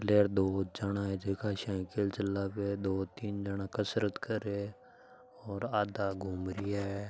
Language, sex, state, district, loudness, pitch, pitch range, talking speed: Marwari, male, Rajasthan, Nagaur, -35 LUFS, 100 Hz, 95-105 Hz, 150 wpm